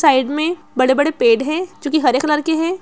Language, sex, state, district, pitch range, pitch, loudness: Hindi, female, Bihar, Araria, 265-320 Hz, 300 Hz, -17 LUFS